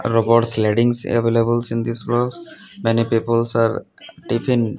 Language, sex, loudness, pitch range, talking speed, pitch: English, male, -19 LUFS, 115-120 Hz, 140 wpm, 115 Hz